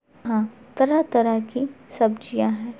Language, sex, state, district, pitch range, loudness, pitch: Hindi, male, Bihar, Gopalganj, 220-265 Hz, -23 LUFS, 230 Hz